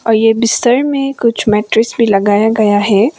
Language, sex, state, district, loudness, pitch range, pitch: Hindi, female, Sikkim, Gangtok, -12 LUFS, 210-235 Hz, 225 Hz